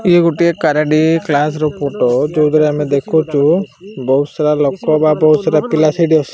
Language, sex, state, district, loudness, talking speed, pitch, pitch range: Odia, male, Odisha, Malkangiri, -13 LUFS, 170 wpm, 155 Hz, 150-160 Hz